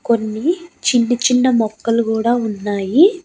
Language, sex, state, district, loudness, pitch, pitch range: Telugu, female, Andhra Pradesh, Annamaya, -16 LUFS, 235 Hz, 220-255 Hz